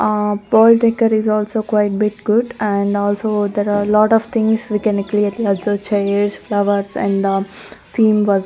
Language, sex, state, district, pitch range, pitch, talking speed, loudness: English, female, Chandigarh, Chandigarh, 205-220 Hz, 210 Hz, 185 wpm, -16 LUFS